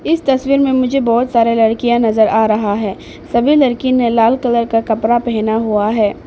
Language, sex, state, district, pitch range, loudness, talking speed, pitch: Hindi, female, Arunachal Pradesh, Papum Pare, 220-255 Hz, -14 LUFS, 200 wpm, 235 Hz